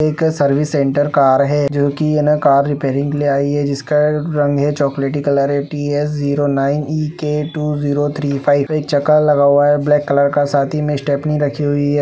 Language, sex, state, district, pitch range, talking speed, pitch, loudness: Hindi, male, Uttar Pradesh, Gorakhpur, 140-150 Hz, 230 wpm, 145 Hz, -15 LUFS